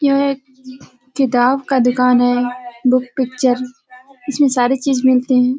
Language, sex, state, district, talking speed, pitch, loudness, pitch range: Hindi, female, Bihar, Kishanganj, 150 wpm, 255 Hz, -16 LUFS, 250-270 Hz